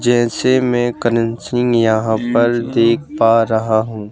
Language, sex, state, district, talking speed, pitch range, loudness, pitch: Hindi, male, Madhya Pradesh, Bhopal, 145 wpm, 115-120 Hz, -15 LUFS, 115 Hz